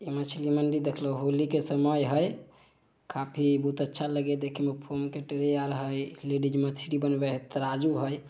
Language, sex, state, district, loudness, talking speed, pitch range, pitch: Maithili, male, Bihar, Samastipur, -29 LUFS, 165 wpm, 140-145 Hz, 140 Hz